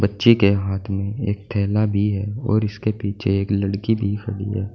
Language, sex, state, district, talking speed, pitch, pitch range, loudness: Hindi, male, Uttar Pradesh, Saharanpur, 200 wpm, 100 Hz, 100-110 Hz, -21 LUFS